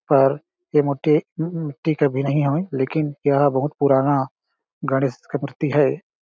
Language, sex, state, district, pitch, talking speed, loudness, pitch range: Hindi, male, Chhattisgarh, Balrampur, 145 Hz, 165 wpm, -21 LUFS, 140-150 Hz